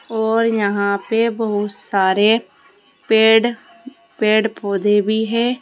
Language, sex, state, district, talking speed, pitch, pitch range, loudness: Hindi, female, Uttar Pradesh, Saharanpur, 105 wpm, 220 Hz, 205-230 Hz, -17 LUFS